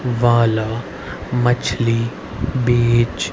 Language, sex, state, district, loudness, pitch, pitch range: Hindi, male, Haryana, Rohtak, -18 LUFS, 120 Hz, 115-120 Hz